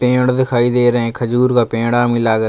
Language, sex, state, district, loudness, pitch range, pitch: Hindi, male, Uttar Pradesh, Jalaun, -15 LUFS, 120-125 Hz, 120 Hz